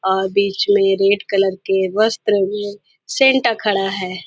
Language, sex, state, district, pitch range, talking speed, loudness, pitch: Hindi, female, Maharashtra, Nagpur, 195-210 Hz, 155 wpm, -17 LUFS, 200 Hz